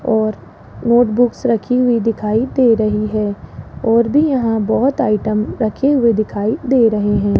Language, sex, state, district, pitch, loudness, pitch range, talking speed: Hindi, female, Rajasthan, Jaipur, 225 Hz, -15 LUFS, 215-250 Hz, 155 wpm